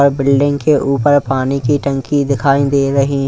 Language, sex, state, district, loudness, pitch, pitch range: Hindi, male, Punjab, Kapurthala, -14 LUFS, 140 Hz, 135-145 Hz